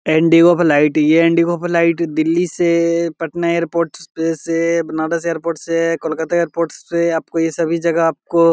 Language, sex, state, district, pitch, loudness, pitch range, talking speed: Hindi, male, Bihar, Begusarai, 165 Hz, -16 LUFS, 165-170 Hz, 170 wpm